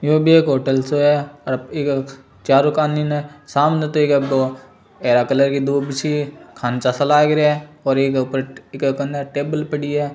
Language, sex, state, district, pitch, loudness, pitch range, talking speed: Marwari, male, Rajasthan, Churu, 140 Hz, -18 LUFS, 135-150 Hz, 190 wpm